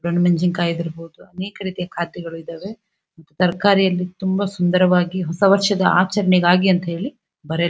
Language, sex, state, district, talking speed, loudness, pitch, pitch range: Kannada, female, Karnataka, Dharwad, 125 wpm, -18 LUFS, 180 Hz, 170-190 Hz